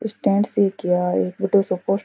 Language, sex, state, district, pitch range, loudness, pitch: Rajasthani, female, Rajasthan, Churu, 185-205 Hz, -20 LUFS, 195 Hz